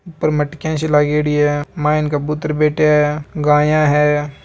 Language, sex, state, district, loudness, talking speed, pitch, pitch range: Marwari, male, Rajasthan, Nagaur, -16 LUFS, 150 wpm, 150 Hz, 150-155 Hz